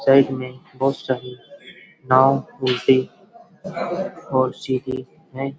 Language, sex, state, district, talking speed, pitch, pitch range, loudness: Hindi, male, Uttar Pradesh, Hamirpur, 95 wpm, 135 Hz, 130-175 Hz, -21 LUFS